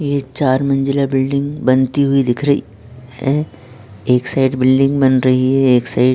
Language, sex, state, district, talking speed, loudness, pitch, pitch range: Hindi, male, Uttarakhand, Tehri Garhwal, 175 wpm, -15 LUFS, 130 Hz, 125-140 Hz